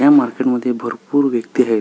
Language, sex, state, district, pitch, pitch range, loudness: Marathi, male, Maharashtra, Solapur, 125 Hz, 120-140 Hz, -17 LUFS